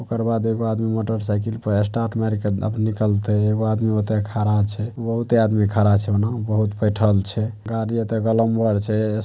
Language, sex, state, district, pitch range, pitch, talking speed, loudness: Maithili, male, Bihar, Saharsa, 105-115 Hz, 110 Hz, 175 wpm, -21 LUFS